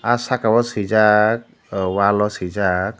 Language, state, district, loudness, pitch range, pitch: Kokborok, Tripura, Dhalai, -18 LUFS, 100-115 Hz, 105 Hz